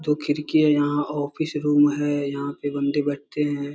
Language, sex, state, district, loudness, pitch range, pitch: Hindi, male, Bihar, Darbhanga, -23 LUFS, 145-150 Hz, 145 Hz